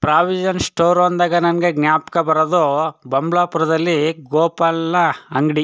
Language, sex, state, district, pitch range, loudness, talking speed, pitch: Kannada, male, Karnataka, Chamarajanagar, 155-175 Hz, -17 LUFS, 105 wpm, 165 Hz